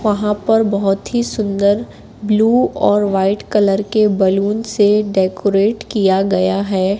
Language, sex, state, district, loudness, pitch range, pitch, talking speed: Hindi, female, Madhya Pradesh, Katni, -15 LUFS, 195-215 Hz, 205 Hz, 135 wpm